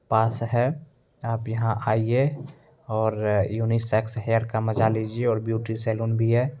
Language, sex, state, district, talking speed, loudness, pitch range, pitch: Hindi, male, Bihar, Begusarai, 145 wpm, -25 LUFS, 110-120 Hz, 115 Hz